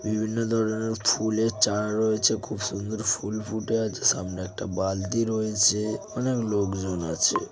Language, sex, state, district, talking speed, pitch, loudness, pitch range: Bengali, male, West Bengal, Jhargram, 135 wpm, 110 Hz, -26 LUFS, 100-110 Hz